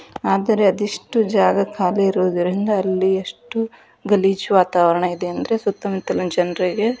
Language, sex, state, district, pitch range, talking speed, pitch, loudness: Kannada, female, Karnataka, Dharwad, 180-205 Hz, 120 wpm, 195 Hz, -19 LUFS